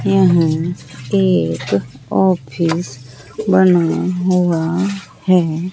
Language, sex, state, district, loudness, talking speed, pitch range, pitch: Hindi, female, Bihar, Katihar, -16 LUFS, 65 wpm, 150-185 Hz, 175 Hz